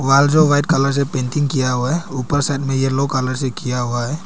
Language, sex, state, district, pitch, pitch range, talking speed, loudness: Hindi, male, Arunachal Pradesh, Papum Pare, 135 Hz, 130-145 Hz, 255 wpm, -18 LUFS